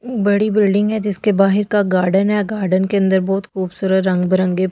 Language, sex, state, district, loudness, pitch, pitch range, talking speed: Hindi, female, Delhi, New Delhi, -16 LUFS, 195 Hz, 185-205 Hz, 205 wpm